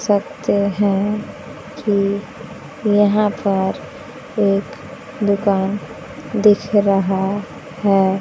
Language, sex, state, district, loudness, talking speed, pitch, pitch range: Hindi, female, Bihar, Kaimur, -18 LUFS, 75 wpm, 200 Hz, 195-210 Hz